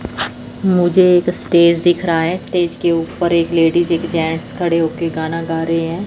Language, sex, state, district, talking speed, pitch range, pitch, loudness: Hindi, female, Chandigarh, Chandigarh, 200 wpm, 165-175 Hz, 170 Hz, -16 LUFS